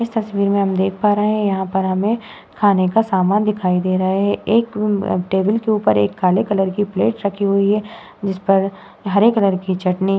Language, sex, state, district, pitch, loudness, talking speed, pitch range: Hindi, female, Uttar Pradesh, Muzaffarnagar, 200 Hz, -17 LUFS, 210 wpm, 190-210 Hz